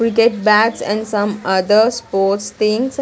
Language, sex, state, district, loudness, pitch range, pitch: English, female, Punjab, Kapurthala, -15 LUFS, 205-230 Hz, 215 Hz